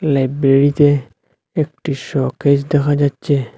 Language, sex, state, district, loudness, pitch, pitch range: Bengali, male, Assam, Hailakandi, -16 LUFS, 140 Hz, 135-145 Hz